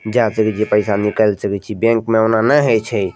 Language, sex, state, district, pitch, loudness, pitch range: Maithili, male, Bihar, Madhepura, 110 Hz, -16 LUFS, 105-115 Hz